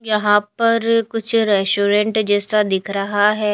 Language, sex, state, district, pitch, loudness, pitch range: Hindi, female, Chhattisgarh, Raipur, 210 Hz, -17 LUFS, 205-225 Hz